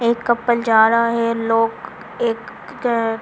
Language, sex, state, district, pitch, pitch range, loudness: Hindi, female, Delhi, New Delhi, 230 Hz, 225-235 Hz, -18 LUFS